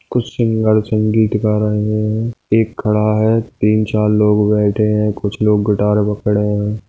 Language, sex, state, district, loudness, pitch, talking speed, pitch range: Hindi, male, Goa, North and South Goa, -15 LUFS, 105 Hz, 165 wpm, 105-110 Hz